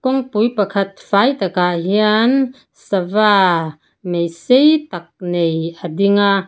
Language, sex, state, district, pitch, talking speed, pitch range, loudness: Mizo, female, Mizoram, Aizawl, 200 Hz, 120 wpm, 175-215 Hz, -16 LUFS